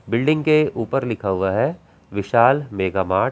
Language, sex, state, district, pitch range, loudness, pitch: Hindi, male, Bihar, Gaya, 95-135 Hz, -20 LUFS, 115 Hz